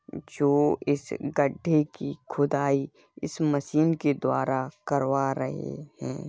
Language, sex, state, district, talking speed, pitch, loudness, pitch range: Hindi, male, Uttar Pradesh, Hamirpur, 115 wpm, 145 Hz, -27 LUFS, 135-150 Hz